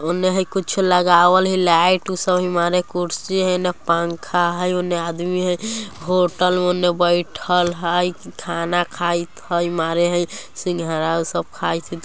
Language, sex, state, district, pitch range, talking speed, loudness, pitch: Bajjika, female, Bihar, Vaishali, 170-180 Hz, 160 wpm, -19 LUFS, 175 Hz